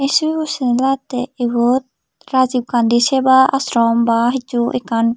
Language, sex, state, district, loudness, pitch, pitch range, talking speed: Chakma, female, Tripura, Unakoti, -16 LUFS, 250 Hz, 235-265 Hz, 130 wpm